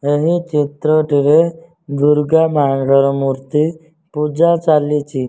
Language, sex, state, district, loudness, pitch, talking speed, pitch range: Odia, male, Odisha, Nuapada, -15 LUFS, 150 Hz, 70 wpm, 145-160 Hz